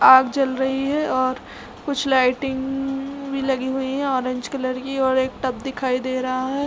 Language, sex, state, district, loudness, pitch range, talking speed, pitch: Hindi, female, Chhattisgarh, Raigarh, -22 LUFS, 255-270 Hz, 205 wpm, 265 Hz